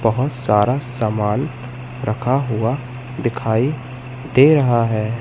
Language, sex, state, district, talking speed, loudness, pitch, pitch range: Hindi, male, Madhya Pradesh, Katni, 105 wpm, -18 LUFS, 125 Hz, 115-130 Hz